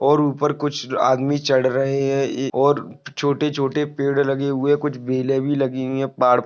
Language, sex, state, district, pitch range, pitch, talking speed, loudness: Hindi, male, Maharashtra, Dhule, 135-145 Hz, 140 Hz, 185 wpm, -20 LUFS